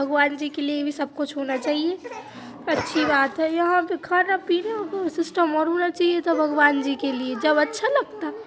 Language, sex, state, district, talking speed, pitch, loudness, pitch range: Hindi, female, Bihar, Madhepura, 205 wpm, 315 Hz, -22 LUFS, 290-355 Hz